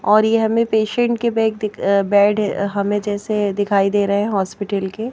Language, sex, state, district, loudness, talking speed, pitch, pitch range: Hindi, female, Madhya Pradesh, Bhopal, -18 LUFS, 175 wpm, 205 Hz, 200-220 Hz